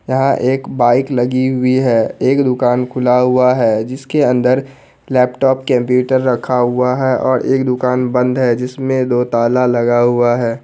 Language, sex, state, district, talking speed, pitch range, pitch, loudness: Hindi, male, Bihar, Purnia, 175 wpm, 125-130 Hz, 125 Hz, -14 LUFS